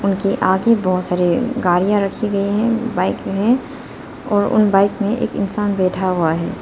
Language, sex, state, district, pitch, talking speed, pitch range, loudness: Hindi, female, Arunachal Pradesh, Lower Dibang Valley, 200 Hz, 170 wpm, 185-215 Hz, -17 LUFS